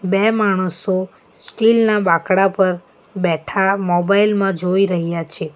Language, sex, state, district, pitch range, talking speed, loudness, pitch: Gujarati, female, Gujarat, Valsad, 175-200 Hz, 130 wpm, -17 LUFS, 190 Hz